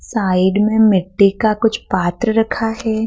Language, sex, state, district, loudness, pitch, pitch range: Hindi, female, Madhya Pradesh, Dhar, -15 LUFS, 220 Hz, 195-225 Hz